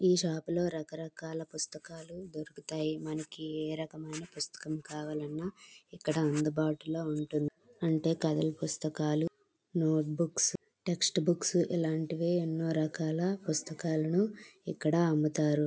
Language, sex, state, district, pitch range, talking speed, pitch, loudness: Telugu, female, Andhra Pradesh, Srikakulam, 155-170 Hz, 105 wpm, 160 Hz, -33 LUFS